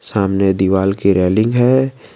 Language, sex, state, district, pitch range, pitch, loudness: Hindi, male, Jharkhand, Garhwa, 95-120 Hz, 100 Hz, -14 LUFS